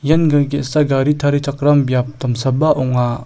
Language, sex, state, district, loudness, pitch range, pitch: Garo, male, Meghalaya, South Garo Hills, -16 LUFS, 130-145 Hz, 140 Hz